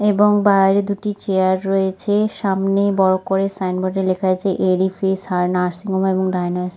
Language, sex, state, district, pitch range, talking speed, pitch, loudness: Bengali, female, West Bengal, Dakshin Dinajpur, 185-195 Hz, 170 wpm, 190 Hz, -18 LUFS